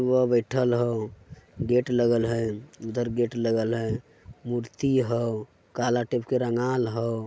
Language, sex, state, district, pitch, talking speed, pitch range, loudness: Magahi, male, Bihar, Jamui, 120 Hz, 140 wpm, 115-125 Hz, -26 LUFS